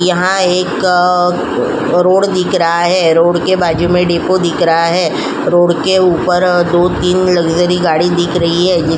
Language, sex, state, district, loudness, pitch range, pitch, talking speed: Hindi, female, Uttar Pradesh, Jyotiba Phule Nagar, -12 LUFS, 170-180 Hz, 175 Hz, 185 wpm